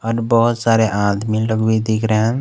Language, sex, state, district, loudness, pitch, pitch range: Hindi, male, Jharkhand, Garhwa, -17 LUFS, 110 Hz, 110-115 Hz